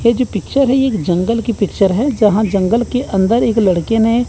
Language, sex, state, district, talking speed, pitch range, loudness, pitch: Hindi, male, Chandigarh, Chandigarh, 225 wpm, 200-240 Hz, -14 LUFS, 225 Hz